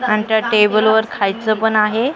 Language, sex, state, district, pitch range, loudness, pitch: Marathi, female, Maharashtra, Mumbai Suburban, 215-225 Hz, -15 LUFS, 220 Hz